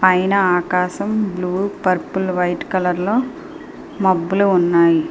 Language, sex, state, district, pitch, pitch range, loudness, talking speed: Telugu, female, Andhra Pradesh, Srikakulam, 185 Hz, 180-200 Hz, -18 LUFS, 105 wpm